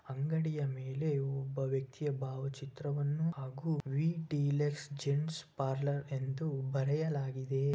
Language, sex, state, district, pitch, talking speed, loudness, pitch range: Kannada, male, Karnataka, Bellary, 140 Hz, 85 wpm, -36 LUFS, 135-150 Hz